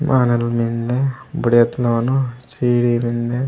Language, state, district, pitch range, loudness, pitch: Gondi, Chhattisgarh, Sukma, 120-130 Hz, -18 LUFS, 120 Hz